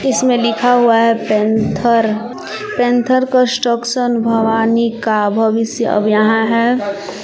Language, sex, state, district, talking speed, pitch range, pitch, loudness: Hindi, female, Jharkhand, Palamu, 110 wpm, 220-245 Hz, 230 Hz, -14 LUFS